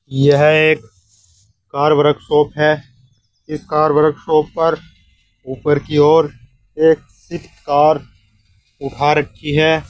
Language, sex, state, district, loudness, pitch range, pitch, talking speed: Hindi, male, Uttar Pradesh, Saharanpur, -15 LUFS, 115-155 Hz, 145 Hz, 110 wpm